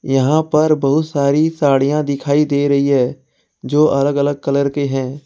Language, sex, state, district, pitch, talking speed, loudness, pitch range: Hindi, male, Jharkhand, Ranchi, 140 Hz, 170 wpm, -15 LUFS, 140-150 Hz